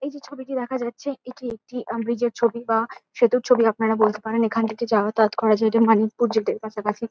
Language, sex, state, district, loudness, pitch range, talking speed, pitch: Bengali, female, West Bengal, Kolkata, -22 LUFS, 220-245 Hz, 230 wpm, 230 Hz